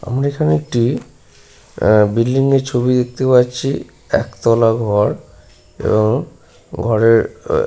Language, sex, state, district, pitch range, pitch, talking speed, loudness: Bengali, male, West Bengal, Purulia, 115-135 Hz, 125 Hz, 110 wpm, -16 LUFS